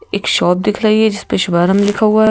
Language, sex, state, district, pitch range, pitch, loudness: Hindi, female, Madhya Pradesh, Bhopal, 190-215 Hz, 210 Hz, -13 LUFS